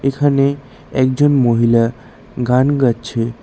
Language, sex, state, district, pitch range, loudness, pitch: Bengali, male, Tripura, West Tripura, 120-135 Hz, -15 LUFS, 130 Hz